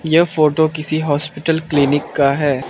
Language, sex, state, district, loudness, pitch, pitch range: Hindi, male, Arunachal Pradesh, Lower Dibang Valley, -16 LUFS, 155 Hz, 145-160 Hz